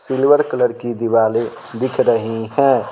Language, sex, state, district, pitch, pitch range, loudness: Hindi, male, Bihar, Patna, 120 Hz, 115-130 Hz, -17 LUFS